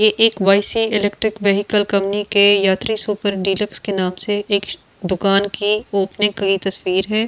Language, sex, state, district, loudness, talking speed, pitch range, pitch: Hindi, female, Delhi, New Delhi, -17 LUFS, 180 wpm, 195-210 Hz, 205 Hz